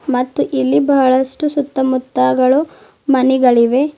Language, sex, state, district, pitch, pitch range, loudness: Kannada, female, Karnataka, Bidar, 260 Hz, 250-275 Hz, -14 LUFS